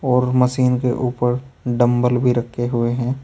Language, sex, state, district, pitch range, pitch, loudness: Hindi, male, Uttar Pradesh, Saharanpur, 120-125 Hz, 125 Hz, -19 LUFS